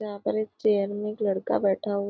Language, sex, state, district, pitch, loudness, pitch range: Hindi, female, Maharashtra, Nagpur, 205 Hz, -27 LUFS, 200-210 Hz